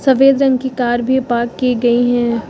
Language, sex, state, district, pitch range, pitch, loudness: Hindi, female, Uttar Pradesh, Lucknow, 240-260 Hz, 245 Hz, -14 LUFS